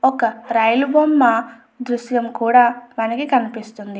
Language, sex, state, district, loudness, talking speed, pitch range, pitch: Telugu, female, Andhra Pradesh, Anantapur, -17 LUFS, 105 wpm, 225-250 Hz, 235 Hz